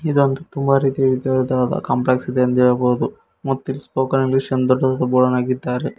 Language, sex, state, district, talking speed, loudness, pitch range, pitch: Kannada, male, Karnataka, Koppal, 140 wpm, -18 LUFS, 125-135 Hz, 130 Hz